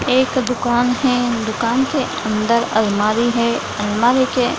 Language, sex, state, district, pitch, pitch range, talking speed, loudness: Hindi, female, Bihar, Gaya, 235 Hz, 220-250 Hz, 145 wpm, -17 LUFS